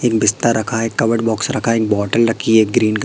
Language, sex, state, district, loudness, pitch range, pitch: Hindi, male, Madhya Pradesh, Katni, -16 LUFS, 110-115 Hz, 115 Hz